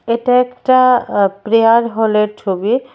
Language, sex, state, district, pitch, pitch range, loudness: Bengali, female, Tripura, West Tripura, 230 Hz, 210-250 Hz, -14 LUFS